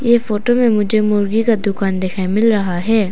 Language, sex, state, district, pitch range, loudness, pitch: Hindi, female, Arunachal Pradesh, Papum Pare, 200-225 Hz, -16 LUFS, 210 Hz